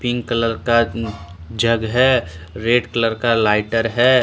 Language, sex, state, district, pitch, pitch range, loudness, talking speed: Hindi, male, Jharkhand, Deoghar, 115 Hz, 110-120 Hz, -18 LUFS, 140 wpm